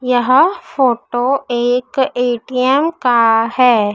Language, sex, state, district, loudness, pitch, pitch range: Hindi, female, Madhya Pradesh, Dhar, -14 LUFS, 245 Hz, 240-260 Hz